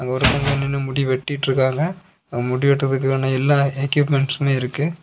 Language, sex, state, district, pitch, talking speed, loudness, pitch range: Tamil, male, Tamil Nadu, Kanyakumari, 140 Hz, 120 wpm, -20 LUFS, 130-145 Hz